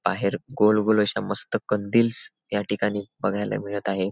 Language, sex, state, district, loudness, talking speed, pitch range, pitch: Marathi, male, Maharashtra, Sindhudurg, -24 LUFS, 160 wpm, 100-110 Hz, 105 Hz